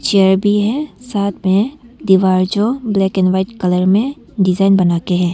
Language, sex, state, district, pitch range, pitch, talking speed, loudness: Hindi, female, Arunachal Pradesh, Longding, 185-215 Hz, 195 Hz, 190 wpm, -15 LUFS